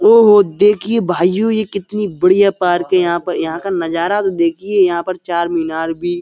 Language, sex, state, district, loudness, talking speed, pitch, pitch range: Hindi, male, Uttar Pradesh, Budaun, -15 LUFS, 205 wpm, 185 Hz, 170-205 Hz